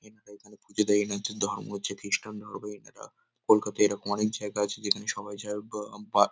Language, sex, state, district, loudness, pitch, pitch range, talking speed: Bengali, male, West Bengal, North 24 Parganas, -29 LUFS, 105 Hz, 100-105 Hz, 200 wpm